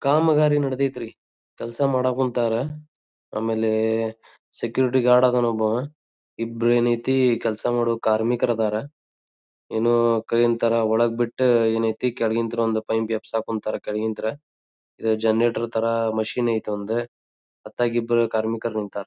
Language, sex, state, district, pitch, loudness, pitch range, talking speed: Kannada, male, Karnataka, Dharwad, 115 Hz, -22 LUFS, 110-120 Hz, 120 wpm